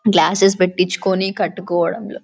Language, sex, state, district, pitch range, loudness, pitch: Telugu, female, Telangana, Karimnagar, 180-195 Hz, -17 LUFS, 190 Hz